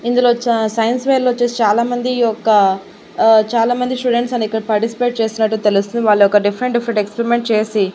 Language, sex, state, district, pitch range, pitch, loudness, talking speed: Telugu, female, Andhra Pradesh, Annamaya, 215-240 Hz, 230 Hz, -15 LUFS, 180 wpm